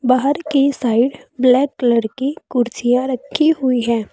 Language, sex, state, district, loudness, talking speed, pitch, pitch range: Hindi, female, Uttar Pradesh, Saharanpur, -17 LUFS, 145 wpm, 255 Hz, 240-275 Hz